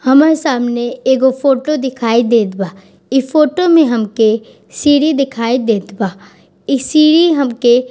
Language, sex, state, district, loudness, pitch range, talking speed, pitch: Bhojpuri, female, Bihar, East Champaran, -13 LUFS, 230-290 Hz, 145 wpm, 255 Hz